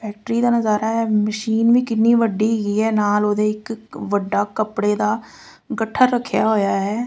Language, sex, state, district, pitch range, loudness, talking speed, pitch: Punjabi, female, Punjab, Fazilka, 210-230 Hz, -19 LUFS, 170 wpm, 215 Hz